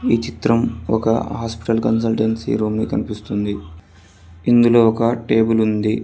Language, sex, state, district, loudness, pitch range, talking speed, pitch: Telugu, male, Telangana, Mahabubabad, -18 LUFS, 105-115 Hz, 120 wpm, 110 Hz